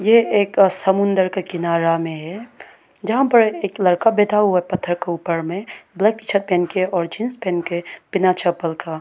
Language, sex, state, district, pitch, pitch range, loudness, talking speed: Hindi, female, Arunachal Pradesh, Lower Dibang Valley, 185 Hz, 175-205 Hz, -19 LUFS, 195 wpm